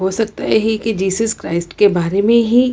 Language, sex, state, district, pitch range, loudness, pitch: Hindi, female, Bihar, Lakhisarai, 190-225 Hz, -16 LUFS, 215 Hz